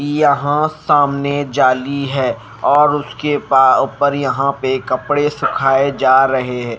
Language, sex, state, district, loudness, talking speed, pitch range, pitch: Hindi, male, Bihar, Kaimur, -15 LUFS, 125 wpm, 130-145 Hz, 140 Hz